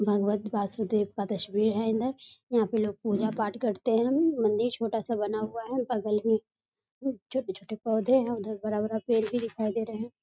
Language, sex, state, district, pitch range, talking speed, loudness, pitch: Hindi, female, Bihar, East Champaran, 210-230 Hz, 190 wpm, -29 LUFS, 220 Hz